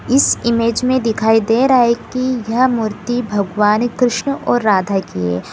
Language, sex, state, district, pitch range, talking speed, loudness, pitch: Hindi, female, Bihar, Kishanganj, 210-250 Hz, 175 wpm, -15 LUFS, 230 Hz